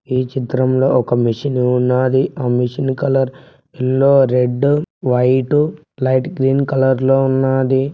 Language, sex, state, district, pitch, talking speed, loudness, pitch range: Telugu, male, Telangana, Mahabubabad, 130 Hz, 120 wpm, -16 LUFS, 125-135 Hz